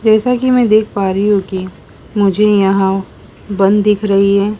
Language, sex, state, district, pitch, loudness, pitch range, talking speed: Hindi, female, Madhya Pradesh, Dhar, 200 Hz, -13 LUFS, 195-215 Hz, 185 wpm